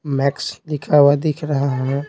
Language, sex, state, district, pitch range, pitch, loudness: Hindi, male, Bihar, Patna, 140-150 Hz, 145 Hz, -18 LUFS